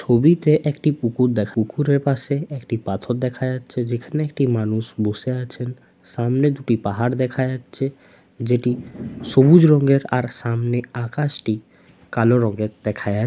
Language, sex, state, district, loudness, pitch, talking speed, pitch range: Bengali, male, West Bengal, Jalpaiguri, -20 LUFS, 125 Hz, 140 wpm, 115-140 Hz